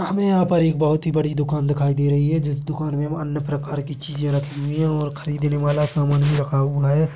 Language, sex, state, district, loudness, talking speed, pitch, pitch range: Hindi, male, Chhattisgarh, Bilaspur, -21 LUFS, 260 wpm, 145 Hz, 145-155 Hz